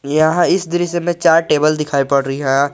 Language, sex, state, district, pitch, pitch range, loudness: Hindi, male, Jharkhand, Garhwa, 155 Hz, 140-170 Hz, -15 LUFS